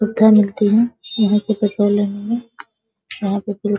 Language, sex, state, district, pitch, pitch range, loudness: Hindi, female, Bihar, Sitamarhi, 210 Hz, 205-220 Hz, -17 LUFS